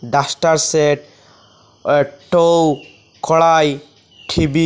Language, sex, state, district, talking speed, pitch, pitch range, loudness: Bengali, male, Assam, Hailakandi, 65 wpm, 150 Hz, 140-160 Hz, -15 LUFS